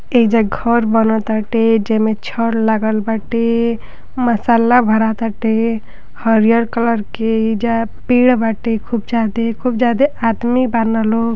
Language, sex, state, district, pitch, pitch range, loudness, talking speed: Bhojpuri, female, Uttar Pradesh, Deoria, 230 Hz, 220-235 Hz, -15 LUFS, 120 wpm